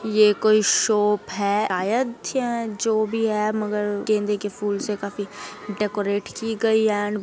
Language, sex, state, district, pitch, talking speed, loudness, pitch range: Hindi, female, Uttar Pradesh, Hamirpur, 210 Hz, 165 wpm, -22 LUFS, 205-220 Hz